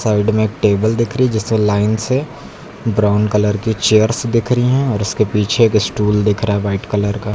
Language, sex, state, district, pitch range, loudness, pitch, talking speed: Hindi, male, Uttar Pradesh, Lucknow, 105-115 Hz, -15 LUFS, 110 Hz, 230 wpm